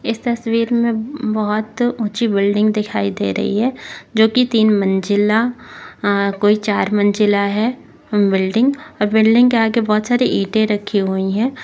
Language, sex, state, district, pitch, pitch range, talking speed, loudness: Hindi, female, Maharashtra, Dhule, 215 Hz, 205-230 Hz, 155 wpm, -16 LUFS